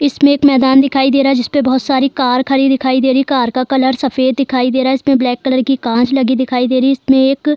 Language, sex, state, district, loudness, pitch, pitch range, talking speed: Hindi, female, Bihar, Darbhanga, -13 LUFS, 265 Hz, 255-270 Hz, 260 wpm